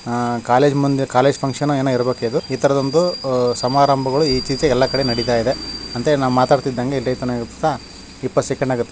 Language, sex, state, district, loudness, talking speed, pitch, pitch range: Kannada, male, Karnataka, Shimoga, -18 LUFS, 150 wpm, 130 Hz, 125-140 Hz